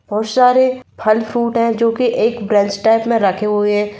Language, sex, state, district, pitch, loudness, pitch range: Hindi, female, Jharkhand, Sahebganj, 225 Hz, -15 LUFS, 210-235 Hz